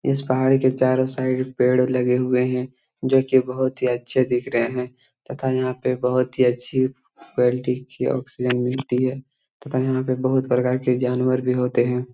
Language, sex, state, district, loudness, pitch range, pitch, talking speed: Hindi, male, Jharkhand, Jamtara, -21 LUFS, 125-130 Hz, 130 Hz, 190 wpm